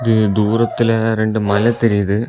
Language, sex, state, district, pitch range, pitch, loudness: Tamil, male, Tamil Nadu, Kanyakumari, 105-115 Hz, 110 Hz, -16 LUFS